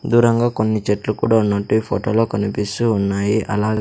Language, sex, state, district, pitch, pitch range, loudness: Telugu, male, Andhra Pradesh, Sri Satya Sai, 110 Hz, 105-115 Hz, -18 LUFS